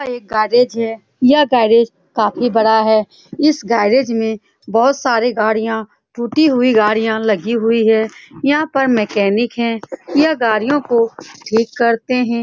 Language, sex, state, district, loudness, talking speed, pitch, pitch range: Hindi, female, Bihar, Saran, -15 LUFS, 150 wpm, 230 Hz, 220-250 Hz